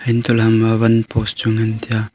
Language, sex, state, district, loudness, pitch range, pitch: Wancho, male, Arunachal Pradesh, Longding, -16 LUFS, 110-115 Hz, 110 Hz